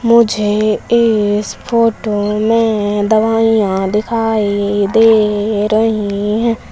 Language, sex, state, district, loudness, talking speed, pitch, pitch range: Hindi, female, Madhya Pradesh, Umaria, -13 LUFS, 80 wpm, 215 Hz, 205-225 Hz